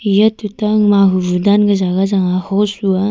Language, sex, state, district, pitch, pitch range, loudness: Wancho, female, Arunachal Pradesh, Longding, 200 Hz, 190-210 Hz, -14 LUFS